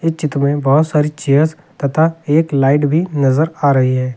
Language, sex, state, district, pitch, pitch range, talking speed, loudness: Hindi, male, Uttar Pradesh, Lucknow, 150 Hz, 140-160 Hz, 200 wpm, -15 LUFS